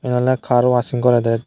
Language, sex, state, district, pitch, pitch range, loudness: Chakma, male, Tripura, Dhalai, 125 Hz, 120-125 Hz, -17 LUFS